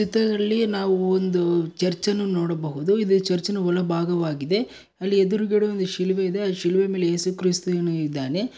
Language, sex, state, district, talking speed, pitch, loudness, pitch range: Kannada, male, Karnataka, Bellary, 160 wpm, 185 Hz, -23 LUFS, 175-200 Hz